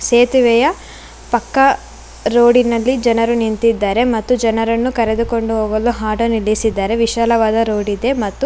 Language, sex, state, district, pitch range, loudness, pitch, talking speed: Kannada, female, Karnataka, Bangalore, 220-240 Hz, -15 LUFS, 230 Hz, 100 wpm